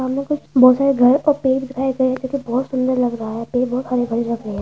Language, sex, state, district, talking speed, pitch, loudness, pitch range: Hindi, female, Uttar Pradesh, Budaun, 325 wpm, 255 Hz, -18 LUFS, 245-265 Hz